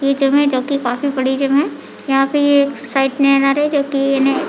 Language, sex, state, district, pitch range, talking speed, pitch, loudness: Hindi, female, Chhattisgarh, Bilaspur, 270-280 Hz, 265 wpm, 275 Hz, -15 LUFS